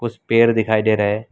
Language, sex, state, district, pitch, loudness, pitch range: Hindi, male, Assam, Kamrup Metropolitan, 110 Hz, -17 LUFS, 105-115 Hz